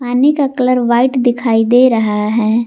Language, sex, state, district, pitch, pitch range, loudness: Hindi, female, Jharkhand, Garhwa, 245 Hz, 225-255 Hz, -12 LUFS